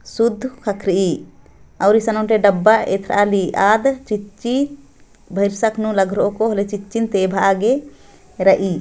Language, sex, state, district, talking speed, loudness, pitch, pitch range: Sadri, female, Chhattisgarh, Jashpur, 115 wpm, -17 LUFS, 205 Hz, 195-225 Hz